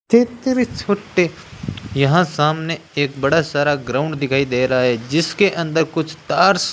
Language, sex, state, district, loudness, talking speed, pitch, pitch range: Hindi, male, Rajasthan, Bikaner, -18 LUFS, 145 wpm, 160 Hz, 140-175 Hz